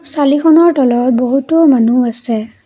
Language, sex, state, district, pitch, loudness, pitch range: Assamese, female, Assam, Kamrup Metropolitan, 265 Hz, -11 LUFS, 245-310 Hz